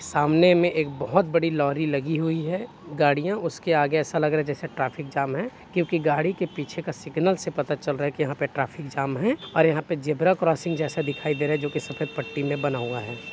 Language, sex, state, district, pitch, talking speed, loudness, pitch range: Hindi, male, Chhattisgarh, Bilaspur, 155 Hz, 240 wpm, -25 LUFS, 145-170 Hz